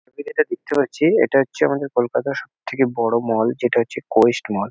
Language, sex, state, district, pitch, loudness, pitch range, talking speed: Bengali, male, West Bengal, Kolkata, 120 Hz, -19 LUFS, 115-140 Hz, 215 wpm